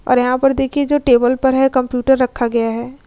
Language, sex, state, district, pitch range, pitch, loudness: Hindi, female, Bihar, Vaishali, 245-270 Hz, 255 Hz, -15 LUFS